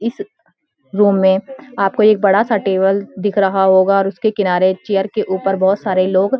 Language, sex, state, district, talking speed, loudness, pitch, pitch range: Hindi, female, Uttarakhand, Uttarkashi, 195 wpm, -15 LUFS, 195 Hz, 190-210 Hz